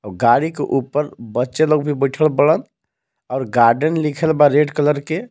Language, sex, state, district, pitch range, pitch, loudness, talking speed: Bhojpuri, male, Jharkhand, Palamu, 125-155 Hz, 145 Hz, -17 LUFS, 180 wpm